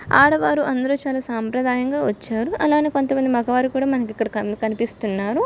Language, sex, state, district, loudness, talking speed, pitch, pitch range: Telugu, female, Telangana, Karimnagar, -20 LUFS, 120 wpm, 255 Hz, 225-275 Hz